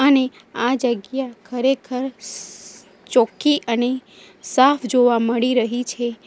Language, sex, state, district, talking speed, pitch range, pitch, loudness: Gujarati, female, Gujarat, Valsad, 105 wpm, 225-260 Hz, 245 Hz, -20 LUFS